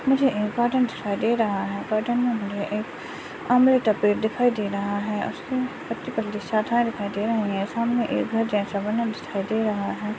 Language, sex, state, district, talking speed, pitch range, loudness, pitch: Hindi, male, Maharashtra, Nagpur, 190 wpm, 205-240 Hz, -24 LUFS, 220 Hz